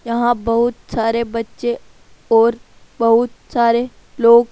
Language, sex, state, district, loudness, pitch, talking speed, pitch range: Hindi, female, Rajasthan, Jaipur, -17 LUFS, 235 Hz, 120 wpm, 230-240 Hz